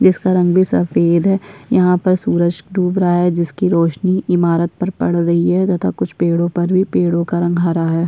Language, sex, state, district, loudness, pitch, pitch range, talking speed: Hindi, female, Bihar, Kishanganj, -15 LUFS, 175 Hz, 170-185 Hz, 210 wpm